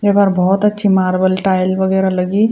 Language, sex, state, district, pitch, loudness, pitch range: Garhwali, female, Uttarakhand, Tehri Garhwal, 190 Hz, -14 LUFS, 185-200 Hz